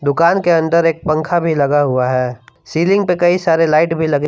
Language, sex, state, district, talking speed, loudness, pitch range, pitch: Hindi, male, Jharkhand, Palamu, 225 wpm, -14 LUFS, 145-170 Hz, 160 Hz